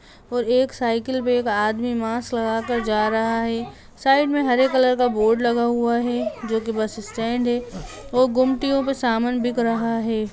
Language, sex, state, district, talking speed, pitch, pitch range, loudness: Hindi, female, Bihar, Lakhisarai, 185 wpm, 235 Hz, 230-250 Hz, -21 LUFS